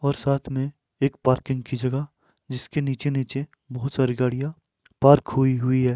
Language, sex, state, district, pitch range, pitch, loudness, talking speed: Hindi, male, Himachal Pradesh, Shimla, 130-140 Hz, 135 Hz, -24 LUFS, 170 wpm